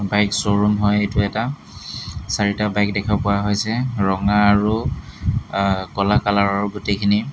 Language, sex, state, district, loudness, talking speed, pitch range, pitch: Assamese, male, Assam, Hailakandi, -19 LUFS, 140 wpm, 100-105 Hz, 105 Hz